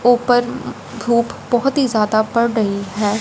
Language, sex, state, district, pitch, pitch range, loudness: Hindi, male, Punjab, Fazilka, 235 Hz, 215-245 Hz, -17 LUFS